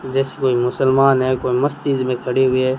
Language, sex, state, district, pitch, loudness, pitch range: Hindi, male, Rajasthan, Bikaner, 130 Hz, -17 LUFS, 130-135 Hz